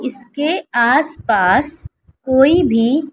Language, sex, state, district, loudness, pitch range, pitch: Hindi, female, Bihar, West Champaran, -15 LUFS, 245-300 Hz, 265 Hz